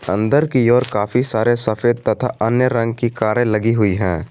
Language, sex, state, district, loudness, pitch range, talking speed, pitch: Hindi, male, Jharkhand, Garhwa, -17 LUFS, 105-120 Hz, 195 wpm, 115 Hz